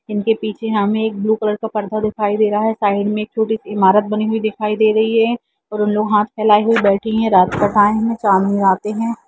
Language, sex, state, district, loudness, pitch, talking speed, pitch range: Hindi, female, Jharkhand, Jamtara, -16 LUFS, 215 Hz, 225 wpm, 205-220 Hz